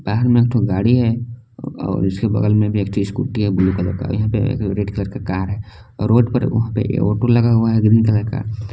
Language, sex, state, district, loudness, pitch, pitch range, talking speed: Hindi, male, Jharkhand, Palamu, -17 LUFS, 110 Hz, 100-120 Hz, 240 wpm